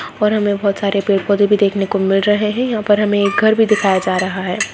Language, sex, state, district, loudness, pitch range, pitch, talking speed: Hindi, female, Bihar, Gaya, -15 LUFS, 195-210 Hz, 200 Hz, 290 wpm